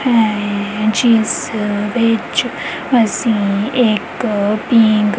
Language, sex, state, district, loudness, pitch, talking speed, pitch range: Punjabi, female, Punjab, Kapurthala, -15 LUFS, 220 Hz, 70 wpm, 210-230 Hz